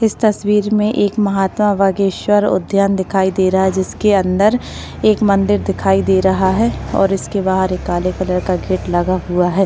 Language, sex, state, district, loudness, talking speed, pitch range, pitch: Hindi, female, Maharashtra, Chandrapur, -15 LUFS, 185 wpm, 190-205 Hz, 195 Hz